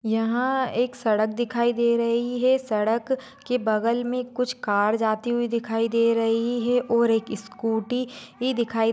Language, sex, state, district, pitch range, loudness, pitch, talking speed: Hindi, female, Maharashtra, Sindhudurg, 225-245 Hz, -24 LUFS, 235 Hz, 160 wpm